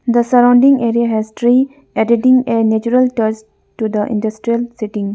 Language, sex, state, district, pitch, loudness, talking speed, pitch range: English, female, Arunachal Pradesh, Lower Dibang Valley, 235 Hz, -14 LUFS, 150 wpm, 220-245 Hz